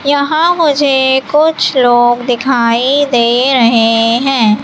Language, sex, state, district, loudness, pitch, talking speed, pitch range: Hindi, female, Madhya Pradesh, Katni, -10 LUFS, 260 Hz, 105 wpm, 235-285 Hz